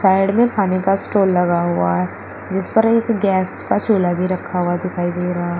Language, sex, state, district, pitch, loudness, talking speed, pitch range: Hindi, female, Uttar Pradesh, Shamli, 185 Hz, -18 LUFS, 215 wpm, 175-195 Hz